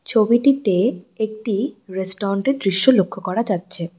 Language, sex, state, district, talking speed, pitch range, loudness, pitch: Bengali, female, West Bengal, Cooch Behar, 120 wpm, 190-230 Hz, -20 LUFS, 200 Hz